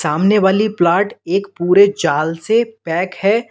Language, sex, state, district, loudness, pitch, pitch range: Hindi, male, Uttar Pradesh, Lalitpur, -15 LUFS, 195 Hz, 175-205 Hz